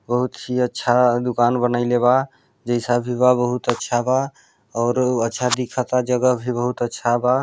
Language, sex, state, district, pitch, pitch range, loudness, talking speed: Hindi, male, Chhattisgarh, Balrampur, 125 Hz, 120-125 Hz, -20 LUFS, 180 wpm